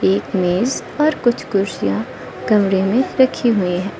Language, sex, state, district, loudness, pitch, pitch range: Hindi, female, Arunachal Pradesh, Lower Dibang Valley, -17 LUFS, 200 Hz, 185-255 Hz